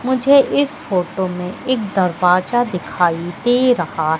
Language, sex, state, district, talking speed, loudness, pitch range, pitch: Hindi, female, Madhya Pradesh, Katni, 130 wpm, -17 LUFS, 175-250 Hz, 185 Hz